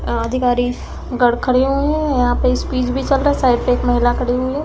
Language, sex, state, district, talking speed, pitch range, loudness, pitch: Hindi, female, Uttar Pradesh, Hamirpur, 220 wpm, 245-270 Hz, -17 LUFS, 250 Hz